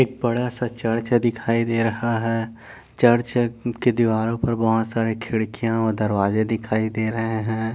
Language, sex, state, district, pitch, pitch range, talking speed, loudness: Hindi, male, Goa, North and South Goa, 115 Hz, 110-120 Hz, 155 wpm, -22 LUFS